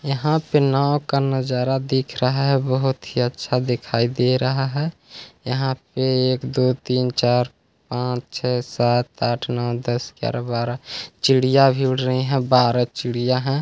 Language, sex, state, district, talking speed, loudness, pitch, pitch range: Hindi, male, Chhattisgarh, Balrampur, 165 wpm, -21 LUFS, 130 Hz, 125-135 Hz